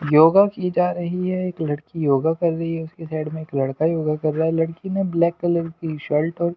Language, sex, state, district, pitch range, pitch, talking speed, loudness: Hindi, male, Delhi, New Delhi, 155-175 Hz, 165 Hz, 245 wpm, -21 LUFS